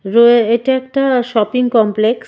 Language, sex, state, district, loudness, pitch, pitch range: Bengali, female, Tripura, West Tripura, -13 LUFS, 235 Hz, 225-255 Hz